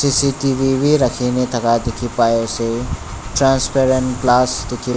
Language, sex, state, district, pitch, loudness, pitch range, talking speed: Nagamese, male, Nagaland, Dimapur, 125 Hz, -17 LUFS, 120-135 Hz, 95 wpm